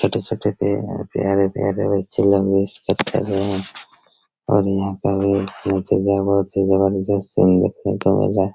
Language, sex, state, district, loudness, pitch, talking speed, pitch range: Hindi, male, Chhattisgarh, Raigarh, -19 LUFS, 100 Hz, 175 wpm, 95-100 Hz